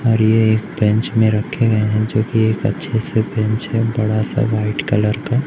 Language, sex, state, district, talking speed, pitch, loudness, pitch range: Hindi, male, Madhya Pradesh, Umaria, 230 wpm, 110 Hz, -17 LUFS, 110-115 Hz